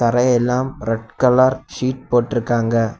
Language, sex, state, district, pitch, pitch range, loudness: Tamil, male, Tamil Nadu, Kanyakumari, 120 Hz, 115-130 Hz, -18 LUFS